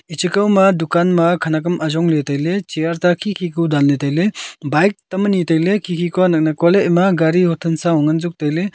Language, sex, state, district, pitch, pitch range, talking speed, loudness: Wancho, male, Arunachal Pradesh, Longding, 170 Hz, 160-185 Hz, 215 wpm, -16 LUFS